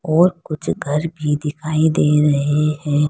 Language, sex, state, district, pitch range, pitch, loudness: Hindi, female, Uttar Pradesh, Saharanpur, 150-155 Hz, 150 Hz, -18 LUFS